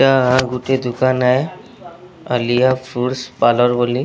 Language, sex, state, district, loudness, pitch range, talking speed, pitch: Odia, male, Odisha, Sambalpur, -16 LUFS, 125-135 Hz, 105 wpm, 130 Hz